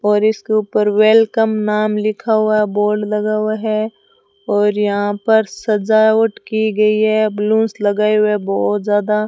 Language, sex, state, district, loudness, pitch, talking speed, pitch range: Hindi, female, Rajasthan, Bikaner, -15 LUFS, 215 Hz, 160 wpm, 210-220 Hz